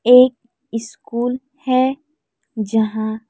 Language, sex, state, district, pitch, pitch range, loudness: Hindi, female, Chhattisgarh, Raipur, 245 Hz, 225-260 Hz, -19 LUFS